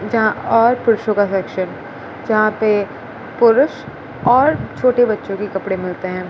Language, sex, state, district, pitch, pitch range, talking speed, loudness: Hindi, female, Gujarat, Gandhinagar, 210 Hz, 195-230 Hz, 145 wpm, -16 LUFS